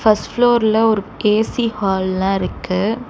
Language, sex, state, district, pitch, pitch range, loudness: Tamil, female, Tamil Nadu, Chennai, 215 Hz, 195-230 Hz, -17 LUFS